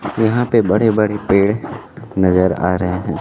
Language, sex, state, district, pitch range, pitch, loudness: Hindi, male, Bihar, Kaimur, 90-115 Hz, 105 Hz, -16 LUFS